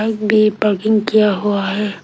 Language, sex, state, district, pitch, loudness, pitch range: Hindi, female, Arunachal Pradesh, Lower Dibang Valley, 210 Hz, -15 LUFS, 205-215 Hz